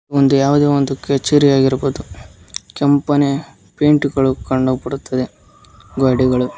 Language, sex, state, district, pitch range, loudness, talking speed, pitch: Kannada, male, Karnataka, Koppal, 130-140 Hz, -16 LUFS, 80 wpm, 135 Hz